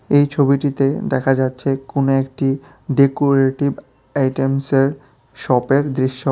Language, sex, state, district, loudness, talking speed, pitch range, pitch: Bengali, male, Tripura, West Tripura, -18 LUFS, 95 wpm, 135-140 Hz, 135 Hz